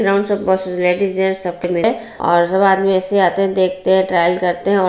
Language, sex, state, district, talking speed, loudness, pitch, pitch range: Hindi, female, Bihar, Patna, 235 wpm, -16 LUFS, 190 Hz, 180-195 Hz